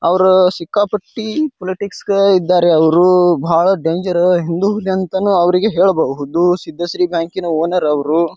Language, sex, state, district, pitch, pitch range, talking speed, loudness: Kannada, male, Karnataka, Bijapur, 180 Hz, 170-190 Hz, 115 wpm, -14 LUFS